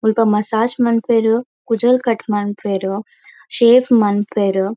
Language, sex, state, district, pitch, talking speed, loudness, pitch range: Tulu, female, Karnataka, Dakshina Kannada, 225 Hz, 100 wpm, -16 LUFS, 205-235 Hz